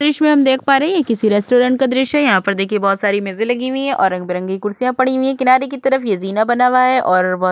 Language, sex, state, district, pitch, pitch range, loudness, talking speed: Hindi, female, Uttar Pradesh, Budaun, 250 Hz, 200-265 Hz, -15 LUFS, 310 wpm